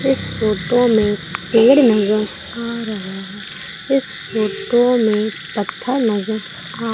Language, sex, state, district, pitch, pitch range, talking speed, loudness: Hindi, female, Madhya Pradesh, Umaria, 215 Hz, 205-240 Hz, 130 wpm, -17 LUFS